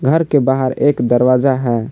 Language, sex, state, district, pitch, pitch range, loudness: Hindi, male, Jharkhand, Palamu, 130 Hz, 125-145 Hz, -14 LUFS